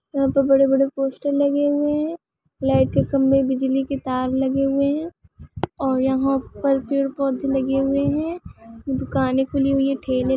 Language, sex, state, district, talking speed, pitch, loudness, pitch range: Hindi, female, Bihar, Purnia, 160 wpm, 275 Hz, -21 LUFS, 265-275 Hz